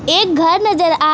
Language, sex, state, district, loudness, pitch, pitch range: Hindi, female, West Bengal, Alipurduar, -13 LUFS, 335 Hz, 315-370 Hz